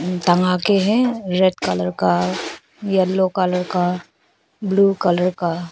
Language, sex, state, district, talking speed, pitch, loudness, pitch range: Hindi, female, Arunachal Pradesh, Papum Pare, 125 wpm, 180 Hz, -18 LUFS, 175-195 Hz